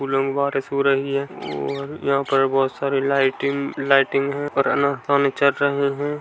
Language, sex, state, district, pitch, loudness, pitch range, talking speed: Hindi, male, Chhattisgarh, Kabirdham, 140 Hz, -21 LUFS, 135-140 Hz, 175 wpm